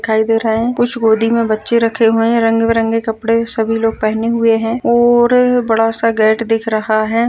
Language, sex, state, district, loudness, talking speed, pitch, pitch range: Hindi, female, Bihar, Jahanabad, -14 LUFS, 205 wpm, 225 Hz, 225-230 Hz